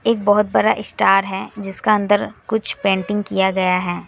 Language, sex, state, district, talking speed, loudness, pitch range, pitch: Hindi, female, West Bengal, Alipurduar, 175 wpm, -18 LUFS, 190-210 Hz, 200 Hz